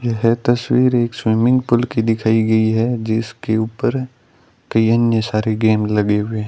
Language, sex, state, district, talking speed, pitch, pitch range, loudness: Hindi, male, Rajasthan, Bikaner, 165 wpm, 115 Hz, 110-120 Hz, -17 LUFS